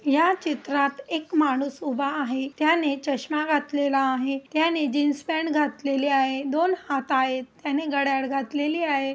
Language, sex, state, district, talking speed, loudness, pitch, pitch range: Marathi, female, Maharashtra, Aurangabad, 145 wpm, -24 LUFS, 285 Hz, 275-305 Hz